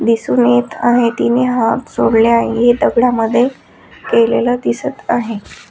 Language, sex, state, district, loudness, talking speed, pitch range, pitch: Marathi, female, Maharashtra, Dhule, -14 LUFS, 125 wpm, 225-240 Hz, 230 Hz